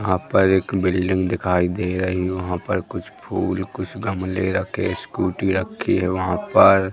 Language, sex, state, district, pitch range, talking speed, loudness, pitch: Hindi, male, Madhya Pradesh, Katni, 90-95 Hz, 175 wpm, -21 LUFS, 95 Hz